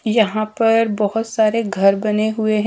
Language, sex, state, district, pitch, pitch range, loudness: Hindi, female, Madhya Pradesh, Dhar, 215 Hz, 215-225 Hz, -17 LUFS